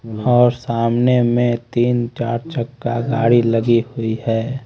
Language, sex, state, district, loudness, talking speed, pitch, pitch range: Hindi, male, Haryana, Rohtak, -17 LUFS, 130 wpm, 120 Hz, 115-120 Hz